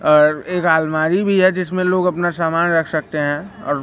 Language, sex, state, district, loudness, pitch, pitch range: Hindi, male, Madhya Pradesh, Katni, -17 LUFS, 170 Hz, 155-185 Hz